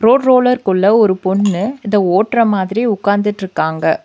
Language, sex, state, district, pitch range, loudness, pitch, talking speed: Tamil, female, Tamil Nadu, Nilgiris, 190-230 Hz, -14 LUFS, 205 Hz, 135 wpm